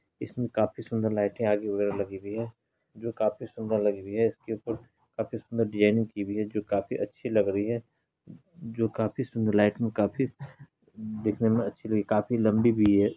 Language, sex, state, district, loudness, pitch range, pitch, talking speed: Hindi, female, Bihar, Saharsa, -28 LUFS, 105-115 Hz, 110 Hz, 190 wpm